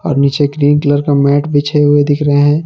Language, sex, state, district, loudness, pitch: Hindi, male, Jharkhand, Palamu, -11 LUFS, 145 Hz